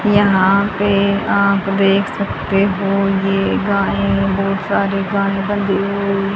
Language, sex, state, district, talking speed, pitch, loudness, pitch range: Hindi, female, Haryana, Charkhi Dadri, 125 wpm, 195 Hz, -16 LUFS, 195-200 Hz